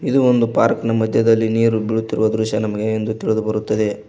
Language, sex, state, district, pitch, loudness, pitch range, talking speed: Kannada, male, Karnataka, Koppal, 110 Hz, -18 LUFS, 110-115 Hz, 145 wpm